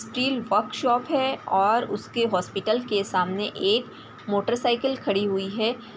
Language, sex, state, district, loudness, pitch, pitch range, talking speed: Hindi, female, Bihar, Samastipur, -25 LUFS, 230 Hz, 200-250 Hz, 150 wpm